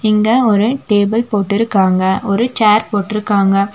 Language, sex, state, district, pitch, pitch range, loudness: Tamil, female, Tamil Nadu, Nilgiris, 210 Hz, 200-220 Hz, -14 LUFS